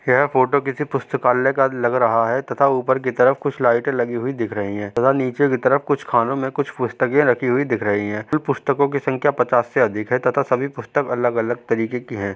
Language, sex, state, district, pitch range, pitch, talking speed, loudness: Hindi, male, Uttar Pradesh, Hamirpur, 120-135 Hz, 125 Hz, 235 wpm, -19 LUFS